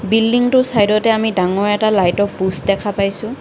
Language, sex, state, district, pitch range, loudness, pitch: Assamese, female, Assam, Kamrup Metropolitan, 195-225 Hz, -15 LUFS, 205 Hz